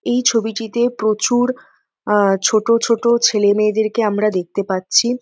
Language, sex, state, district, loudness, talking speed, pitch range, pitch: Bengali, female, West Bengal, North 24 Parganas, -16 LUFS, 125 wpm, 210-235 Hz, 220 Hz